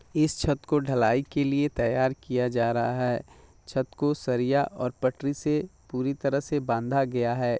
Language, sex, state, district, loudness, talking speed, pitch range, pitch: Hindi, male, Jharkhand, Jamtara, -27 LUFS, 180 wpm, 120-145 Hz, 130 Hz